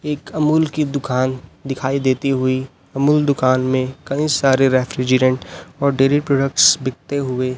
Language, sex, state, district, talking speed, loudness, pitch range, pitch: Hindi, male, Chhattisgarh, Raipur, 135 wpm, -17 LUFS, 130-140 Hz, 135 Hz